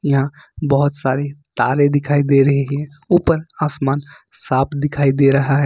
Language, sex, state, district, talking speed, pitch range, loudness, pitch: Hindi, male, Jharkhand, Ranchi, 160 wpm, 140-145 Hz, -17 LUFS, 145 Hz